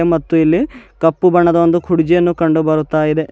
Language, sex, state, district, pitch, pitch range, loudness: Kannada, male, Karnataka, Bidar, 165 Hz, 160-175 Hz, -14 LUFS